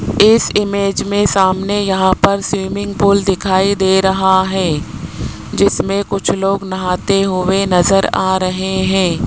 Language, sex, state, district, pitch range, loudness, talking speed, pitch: Hindi, male, Rajasthan, Jaipur, 190-200 Hz, -14 LUFS, 135 wpm, 190 Hz